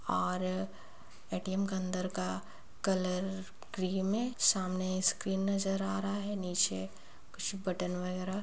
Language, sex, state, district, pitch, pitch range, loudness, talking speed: Hindi, female, Bihar, Bhagalpur, 185 Hz, 180-195 Hz, -34 LUFS, 130 wpm